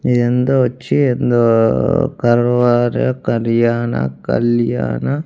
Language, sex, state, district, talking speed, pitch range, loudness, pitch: Telugu, male, Andhra Pradesh, Annamaya, 70 wpm, 120-125 Hz, -15 LUFS, 120 Hz